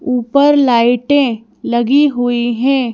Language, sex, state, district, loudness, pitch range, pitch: Hindi, female, Madhya Pradesh, Bhopal, -13 LUFS, 240-280 Hz, 245 Hz